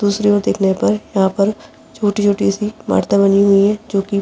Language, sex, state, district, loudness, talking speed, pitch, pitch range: Hindi, female, Uttar Pradesh, Jyotiba Phule Nagar, -15 LUFS, 215 wpm, 200 Hz, 195-205 Hz